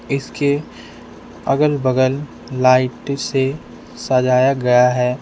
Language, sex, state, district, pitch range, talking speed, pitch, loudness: Hindi, male, Jharkhand, Deoghar, 125-140 Hz, 90 wpm, 130 Hz, -17 LUFS